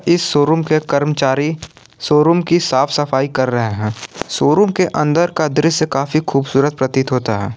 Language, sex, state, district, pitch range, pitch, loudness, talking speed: Hindi, male, Jharkhand, Palamu, 130-160 Hz, 145 Hz, -15 LUFS, 165 wpm